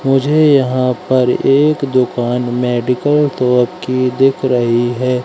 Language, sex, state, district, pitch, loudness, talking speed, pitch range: Hindi, male, Madhya Pradesh, Katni, 130 Hz, -14 LUFS, 125 wpm, 125-135 Hz